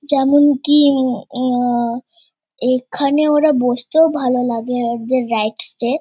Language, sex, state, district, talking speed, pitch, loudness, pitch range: Bengali, female, West Bengal, Kolkata, 130 wpm, 255 Hz, -16 LUFS, 245-290 Hz